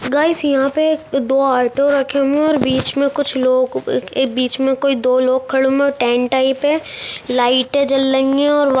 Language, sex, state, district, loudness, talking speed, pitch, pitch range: Hindi, female, Bihar, Jamui, -16 LUFS, 220 wpm, 270 Hz, 255-280 Hz